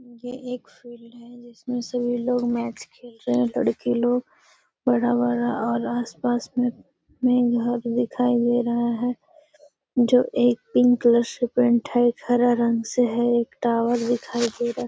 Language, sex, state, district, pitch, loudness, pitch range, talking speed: Magahi, female, Bihar, Gaya, 240 Hz, -22 LUFS, 235-245 Hz, 165 wpm